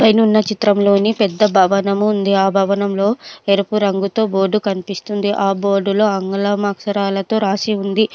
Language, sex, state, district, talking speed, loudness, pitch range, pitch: Telugu, female, Telangana, Adilabad, 125 wpm, -16 LUFS, 195-210 Hz, 200 Hz